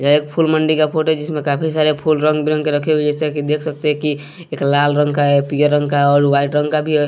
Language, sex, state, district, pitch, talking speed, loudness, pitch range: Hindi, male, Bihar, West Champaran, 150 Hz, 320 wpm, -16 LUFS, 145-155 Hz